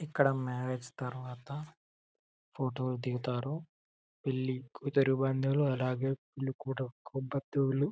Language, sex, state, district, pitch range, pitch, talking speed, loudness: Telugu, male, Telangana, Karimnagar, 130-140 Hz, 135 Hz, 100 wpm, -34 LUFS